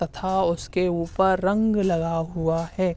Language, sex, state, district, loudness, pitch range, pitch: Hindi, male, Uttar Pradesh, Hamirpur, -23 LUFS, 165-190 Hz, 175 Hz